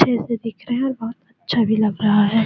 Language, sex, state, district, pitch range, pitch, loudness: Hindi, female, Chhattisgarh, Bilaspur, 215-235 Hz, 225 Hz, -20 LUFS